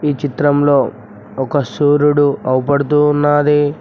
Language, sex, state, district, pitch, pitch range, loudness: Telugu, male, Telangana, Mahabubabad, 145 Hz, 135-145 Hz, -14 LUFS